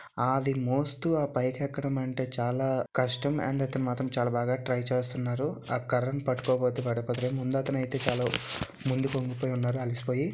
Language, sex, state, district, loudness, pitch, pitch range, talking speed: Telugu, male, Andhra Pradesh, Visakhapatnam, -30 LUFS, 130 Hz, 125-135 Hz, 145 wpm